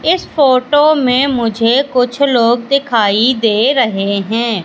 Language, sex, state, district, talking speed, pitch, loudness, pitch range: Hindi, female, Madhya Pradesh, Katni, 130 wpm, 245 Hz, -12 LUFS, 225-275 Hz